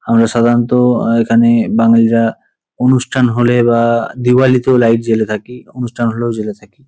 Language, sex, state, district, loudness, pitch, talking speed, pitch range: Bengali, male, West Bengal, Paschim Medinipur, -12 LUFS, 115 Hz, 140 wpm, 115-125 Hz